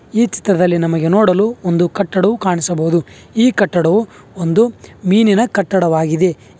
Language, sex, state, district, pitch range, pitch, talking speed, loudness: Kannada, male, Karnataka, Bangalore, 170-210 Hz, 185 Hz, 120 wpm, -15 LUFS